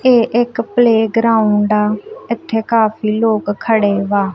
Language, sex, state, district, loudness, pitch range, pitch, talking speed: Punjabi, female, Punjab, Kapurthala, -15 LUFS, 210-230 Hz, 220 Hz, 140 wpm